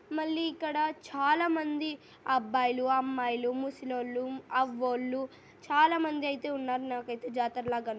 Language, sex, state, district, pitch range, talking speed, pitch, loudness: Telugu, female, Andhra Pradesh, Anantapur, 250-300 Hz, 115 wpm, 265 Hz, -31 LUFS